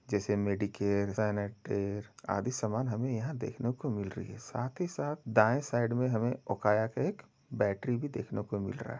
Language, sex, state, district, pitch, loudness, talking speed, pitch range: Hindi, male, Uttar Pradesh, Jalaun, 110 Hz, -33 LUFS, 195 wpm, 100-125 Hz